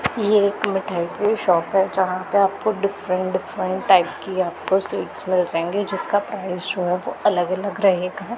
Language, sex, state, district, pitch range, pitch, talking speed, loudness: Hindi, female, Punjab, Pathankot, 185-200 Hz, 190 Hz, 180 wpm, -21 LUFS